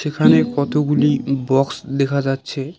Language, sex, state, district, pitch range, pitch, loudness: Bengali, male, West Bengal, Cooch Behar, 135-145 Hz, 140 Hz, -18 LUFS